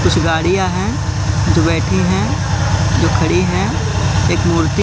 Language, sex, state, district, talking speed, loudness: Hindi, male, Madhya Pradesh, Katni, 135 wpm, -15 LUFS